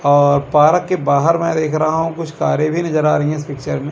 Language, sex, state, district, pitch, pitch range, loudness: Hindi, male, Chandigarh, Chandigarh, 155 Hz, 145-165 Hz, -16 LUFS